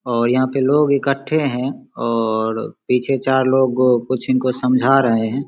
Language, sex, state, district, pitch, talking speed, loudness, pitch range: Hindi, male, Bihar, Samastipur, 130 Hz, 165 wpm, -17 LUFS, 125-135 Hz